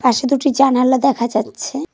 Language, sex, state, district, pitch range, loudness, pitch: Bengali, female, West Bengal, Cooch Behar, 250-275 Hz, -16 LUFS, 265 Hz